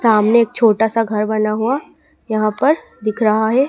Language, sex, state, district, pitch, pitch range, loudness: Hindi, female, Madhya Pradesh, Dhar, 225 Hz, 215-260 Hz, -16 LUFS